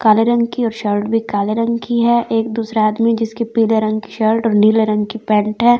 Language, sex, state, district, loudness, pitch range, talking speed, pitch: Hindi, female, Delhi, New Delhi, -16 LUFS, 215-230 Hz, 235 wpm, 225 Hz